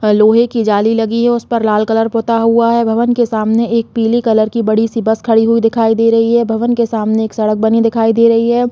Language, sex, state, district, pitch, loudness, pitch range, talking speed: Hindi, female, Chhattisgarh, Balrampur, 225 Hz, -12 LUFS, 220-230 Hz, 270 wpm